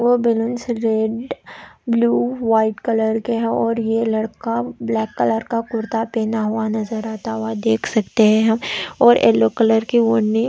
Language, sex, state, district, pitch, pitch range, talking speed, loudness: Hindi, female, Chhattisgarh, Raigarh, 225 Hz, 220-235 Hz, 165 wpm, -18 LUFS